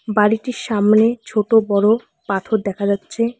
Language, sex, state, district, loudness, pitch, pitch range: Bengali, female, West Bengal, Alipurduar, -18 LUFS, 215 Hz, 205-230 Hz